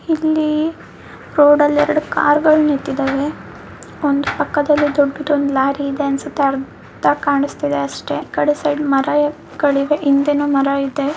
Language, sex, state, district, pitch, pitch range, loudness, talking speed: Kannada, female, Karnataka, Mysore, 290 Hz, 275-295 Hz, -16 LUFS, 120 wpm